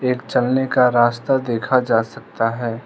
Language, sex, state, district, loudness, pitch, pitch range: Hindi, male, Arunachal Pradesh, Lower Dibang Valley, -18 LUFS, 120 Hz, 115-130 Hz